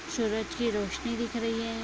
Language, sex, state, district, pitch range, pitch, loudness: Hindi, female, Bihar, Araria, 225-235 Hz, 230 Hz, -31 LUFS